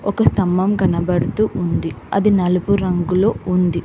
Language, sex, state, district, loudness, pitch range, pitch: Telugu, female, Telangana, Hyderabad, -18 LUFS, 180-200 Hz, 185 Hz